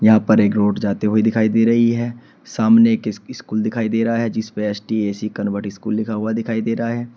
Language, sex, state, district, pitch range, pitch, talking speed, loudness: Hindi, male, Uttar Pradesh, Shamli, 105-115 Hz, 110 Hz, 235 wpm, -18 LUFS